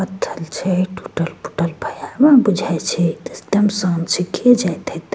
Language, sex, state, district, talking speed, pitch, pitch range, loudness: Maithili, female, Bihar, Begusarai, 140 wpm, 180 Hz, 170-200 Hz, -18 LUFS